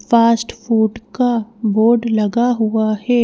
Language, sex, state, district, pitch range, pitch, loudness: Hindi, female, Madhya Pradesh, Bhopal, 220-235 Hz, 230 Hz, -16 LUFS